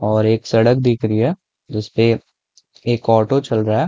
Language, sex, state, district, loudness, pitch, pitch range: Hindi, male, Chhattisgarh, Rajnandgaon, -17 LUFS, 115 Hz, 110-120 Hz